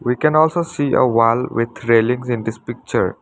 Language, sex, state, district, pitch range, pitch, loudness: English, male, Assam, Sonitpur, 115-145 Hz, 120 Hz, -17 LUFS